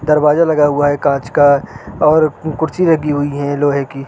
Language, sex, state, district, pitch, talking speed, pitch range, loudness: Hindi, male, Uttarakhand, Uttarkashi, 145 Hz, 190 wpm, 145-155 Hz, -14 LUFS